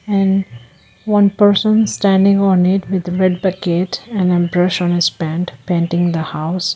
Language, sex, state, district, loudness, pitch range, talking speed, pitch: English, female, Arunachal Pradesh, Lower Dibang Valley, -15 LUFS, 175-200 Hz, 160 wpm, 180 Hz